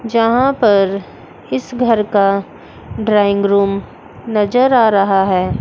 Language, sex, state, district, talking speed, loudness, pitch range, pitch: Hindi, female, Chandigarh, Chandigarh, 120 wpm, -14 LUFS, 195-230 Hz, 200 Hz